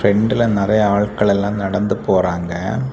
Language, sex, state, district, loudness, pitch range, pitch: Tamil, male, Tamil Nadu, Kanyakumari, -17 LUFS, 95-105 Hz, 100 Hz